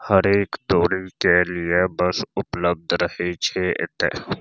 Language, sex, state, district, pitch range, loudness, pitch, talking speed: Maithili, male, Bihar, Saharsa, 85-95 Hz, -21 LUFS, 90 Hz, 135 wpm